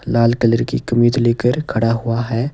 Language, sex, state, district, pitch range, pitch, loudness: Hindi, male, Himachal Pradesh, Shimla, 115-120 Hz, 115 Hz, -17 LUFS